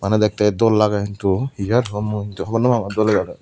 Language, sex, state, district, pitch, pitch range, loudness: Chakma, female, Tripura, Unakoti, 105 Hz, 100-115 Hz, -19 LUFS